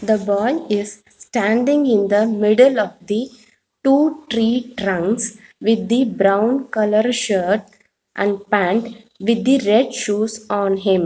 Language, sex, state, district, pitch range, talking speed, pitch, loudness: English, female, Telangana, Hyderabad, 205-240 Hz, 135 wpm, 220 Hz, -18 LUFS